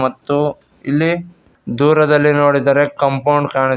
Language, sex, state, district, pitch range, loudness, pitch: Kannada, male, Karnataka, Koppal, 140-150 Hz, -15 LUFS, 145 Hz